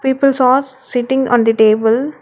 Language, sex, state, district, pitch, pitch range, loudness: English, female, Telangana, Hyderabad, 260 Hz, 235-265 Hz, -13 LUFS